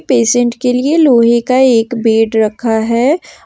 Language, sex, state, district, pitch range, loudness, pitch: Hindi, female, Jharkhand, Ranchi, 225-255 Hz, -11 LUFS, 240 Hz